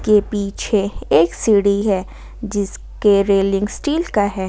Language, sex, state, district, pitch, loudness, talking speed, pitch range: Hindi, female, Jharkhand, Ranchi, 205 Hz, -18 LUFS, 135 wpm, 195-210 Hz